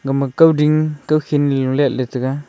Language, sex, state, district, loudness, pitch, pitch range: Wancho, male, Arunachal Pradesh, Longding, -16 LUFS, 145 Hz, 135-155 Hz